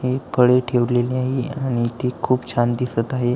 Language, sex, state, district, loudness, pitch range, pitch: Marathi, male, Maharashtra, Aurangabad, -20 LUFS, 120-130 Hz, 125 Hz